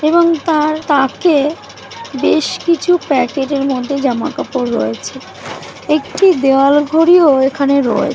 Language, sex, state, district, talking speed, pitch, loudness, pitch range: Bengali, female, West Bengal, Jalpaiguri, 125 wpm, 290 Hz, -13 LUFS, 270-320 Hz